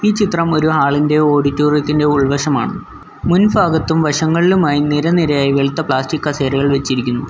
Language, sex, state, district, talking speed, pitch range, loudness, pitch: Malayalam, male, Kerala, Kollam, 125 wpm, 140-160 Hz, -15 LUFS, 150 Hz